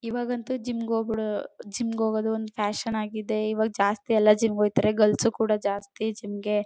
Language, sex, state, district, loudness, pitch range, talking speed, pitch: Kannada, female, Karnataka, Chamarajanagar, -26 LUFS, 210-225 Hz, 190 wpm, 220 Hz